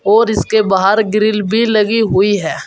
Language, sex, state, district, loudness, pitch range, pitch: Hindi, male, Uttar Pradesh, Saharanpur, -13 LUFS, 200-220 Hz, 215 Hz